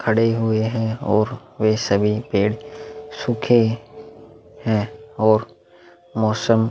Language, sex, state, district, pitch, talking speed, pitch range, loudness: Hindi, male, Uttar Pradesh, Muzaffarnagar, 110 Hz, 105 wpm, 110-130 Hz, -20 LUFS